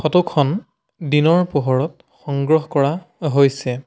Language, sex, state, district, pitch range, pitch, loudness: Assamese, male, Assam, Sonitpur, 140-165 Hz, 150 Hz, -18 LUFS